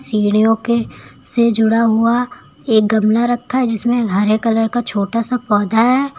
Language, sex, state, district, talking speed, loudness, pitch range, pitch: Hindi, female, Uttar Pradesh, Lucknow, 165 wpm, -15 LUFS, 220-240 Hz, 230 Hz